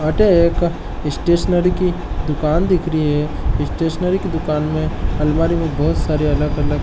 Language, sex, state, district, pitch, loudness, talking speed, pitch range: Marwari, male, Rajasthan, Nagaur, 160 Hz, -18 LUFS, 165 wpm, 150-175 Hz